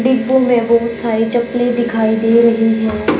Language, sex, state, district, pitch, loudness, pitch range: Hindi, male, Haryana, Jhajjar, 235 Hz, -14 LUFS, 225-245 Hz